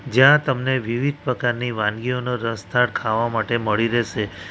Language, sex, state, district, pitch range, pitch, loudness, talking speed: Gujarati, male, Gujarat, Valsad, 110-125 Hz, 120 Hz, -21 LUFS, 135 wpm